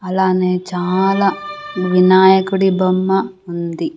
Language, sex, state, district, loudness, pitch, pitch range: Telugu, female, Andhra Pradesh, Sri Satya Sai, -15 LUFS, 185 Hz, 180-190 Hz